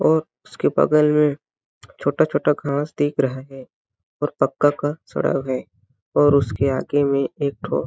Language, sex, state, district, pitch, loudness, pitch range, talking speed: Hindi, male, Chhattisgarh, Balrampur, 140 Hz, -20 LUFS, 130-145 Hz, 160 wpm